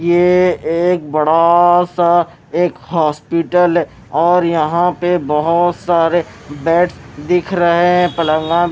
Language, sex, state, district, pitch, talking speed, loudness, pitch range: Hindi, male, Maharashtra, Mumbai Suburban, 170 Hz, 105 wpm, -14 LUFS, 165-175 Hz